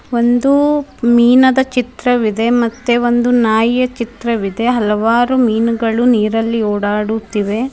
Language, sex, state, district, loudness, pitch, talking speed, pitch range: Kannada, female, Karnataka, Bidar, -14 LUFS, 235 Hz, 85 wpm, 225-245 Hz